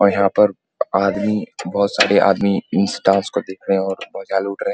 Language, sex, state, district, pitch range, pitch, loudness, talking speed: Hindi, male, Bihar, Muzaffarpur, 95-100 Hz, 100 Hz, -18 LUFS, 230 wpm